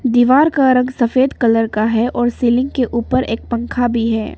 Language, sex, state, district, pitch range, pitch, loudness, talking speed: Hindi, female, Arunachal Pradesh, Papum Pare, 230-255 Hz, 240 Hz, -15 LUFS, 205 wpm